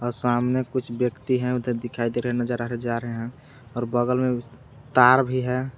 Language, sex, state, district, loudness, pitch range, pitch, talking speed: Hindi, male, Jharkhand, Palamu, -24 LUFS, 120-130 Hz, 125 Hz, 230 wpm